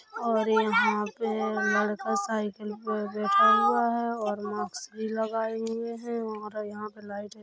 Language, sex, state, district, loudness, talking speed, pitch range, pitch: Hindi, female, Uttar Pradesh, Hamirpur, -28 LUFS, 160 wpm, 210-230 Hz, 220 Hz